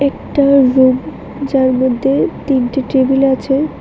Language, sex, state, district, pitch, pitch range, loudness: Bengali, female, Tripura, West Tripura, 270 Hz, 260-275 Hz, -13 LUFS